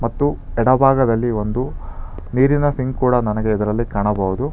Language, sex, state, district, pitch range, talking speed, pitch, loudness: Kannada, male, Karnataka, Bangalore, 105-130 Hz, 130 wpm, 115 Hz, -18 LUFS